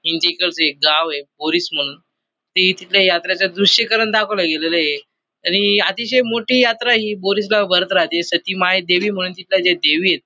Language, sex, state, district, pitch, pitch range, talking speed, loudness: Marathi, male, Maharashtra, Dhule, 185 Hz, 170-210 Hz, 160 wpm, -16 LUFS